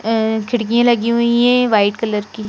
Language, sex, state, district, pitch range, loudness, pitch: Hindi, female, Madhya Pradesh, Bhopal, 215-235 Hz, -15 LUFS, 225 Hz